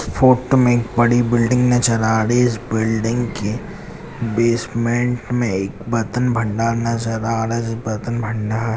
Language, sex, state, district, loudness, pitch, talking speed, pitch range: Hindi, male, Bihar, Jamui, -18 LUFS, 115 Hz, 150 wpm, 110-120 Hz